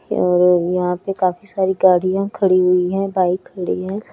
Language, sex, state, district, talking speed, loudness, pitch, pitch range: Hindi, female, Chhattisgarh, Raipur, 160 wpm, -17 LUFS, 185 Hz, 180-195 Hz